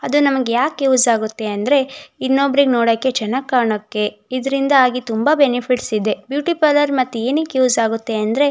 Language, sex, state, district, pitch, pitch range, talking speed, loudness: Kannada, female, Karnataka, Shimoga, 255 Hz, 230-280 Hz, 150 wpm, -17 LUFS